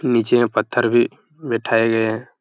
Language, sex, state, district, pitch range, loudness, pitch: Hindi, male, Uttar Pradesh, Hamirpur, 115-120 Hz, -18 LUFS, 120 Hz